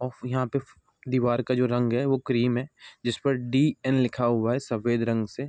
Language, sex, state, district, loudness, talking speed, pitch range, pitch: Hindi, male, Bihar, Gopalganj, -26 LUFS, 240 wpm, 120-130 Hz, 125 Hz